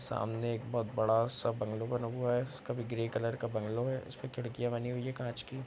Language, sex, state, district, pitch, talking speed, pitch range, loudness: Hindi, male, Bihar, East Champaran, 120 Hz, 230 wpm, 115-125 Hz, -36 LUFS